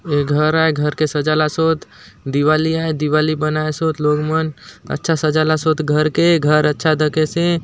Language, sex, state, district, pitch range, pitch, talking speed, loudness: Halbi, male, Chhattisgarh, Bastar, 150-160 Hz, 155 Hz, 180 wpm, -17 LUFS